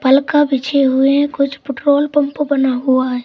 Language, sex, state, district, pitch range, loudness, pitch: Hindi, male, Madhya Pradesh, Katni, 265-290 Hz, -15 LUFS, 275 Hz